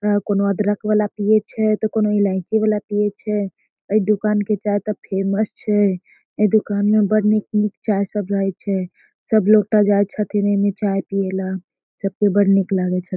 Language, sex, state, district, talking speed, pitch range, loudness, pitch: Maithili, female, Bihar, Darbhanga, 215 wpm, 195-210 Hz, -19 LUFS, 205 Hz